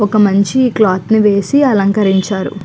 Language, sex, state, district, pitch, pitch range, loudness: Telugu, female, Andhra Pradesh, Chittoor, 205 Hz, 195-220 Hz, -12 LUFS